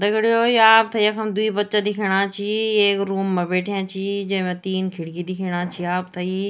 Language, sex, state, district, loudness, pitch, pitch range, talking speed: Garhwali, female, Uttarakhand, Tehri Garhwal, -20 LUFS, 195 Hz, 185-210 Hz, 175 wpm